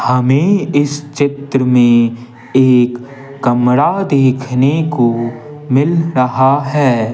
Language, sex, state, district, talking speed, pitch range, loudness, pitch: Hindi, male, Bihar, Patna, 90 wpm, 125-145 Hz, -13 LUFS, 130 Hz